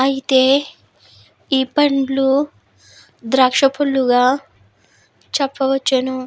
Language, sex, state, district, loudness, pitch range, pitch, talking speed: Telugu, female, Andhra Pradesh, Visakhapatnam, -16 LUFS, 175-270 Hz, 265 Hz, 55 wpm